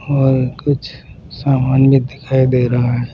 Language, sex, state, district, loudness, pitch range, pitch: Hindi, male, Maharashtra, Washim, -15 LUFS, 125-135 Hz, 130 Hz